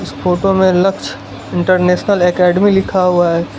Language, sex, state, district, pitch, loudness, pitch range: Hindi, male, Gujarat, Valsad, 180 Hz, -13 LUFS, 175-190 Hz